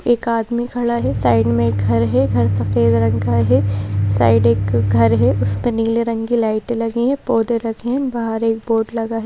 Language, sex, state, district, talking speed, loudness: Hindi, female, Madhya Pradesh, Bhopal, 215 wpm, -17 LUFS